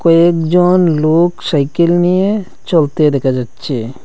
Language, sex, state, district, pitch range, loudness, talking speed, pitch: Bengali, male, Assam, Hailakandi, 140-175 Hz, -13 LUFS, 105 wpm, 165 Hz